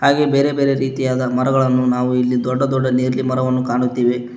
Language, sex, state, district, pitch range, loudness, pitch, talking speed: Kannada, male, Karnataka, Koppal, 125-135 Hz, -17 LUFS, 130 Hz, 165 wpm